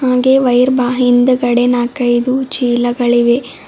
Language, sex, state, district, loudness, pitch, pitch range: Kannada, female, Karnataka, Bidar, -12 LUFS, 245 Hz, 240-255 Hz